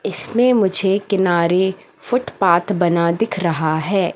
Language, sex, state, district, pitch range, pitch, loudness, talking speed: Hindi, female, Madhya Pradesh, Katni, 170-200 Hz, 190 Hz, -17 LUFS, 115 wpm